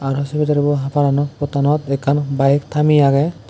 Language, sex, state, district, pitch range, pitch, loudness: Chakma, male, Tripura, West Tripura, 140-145 Hz, 145 Hz, -17 LUFS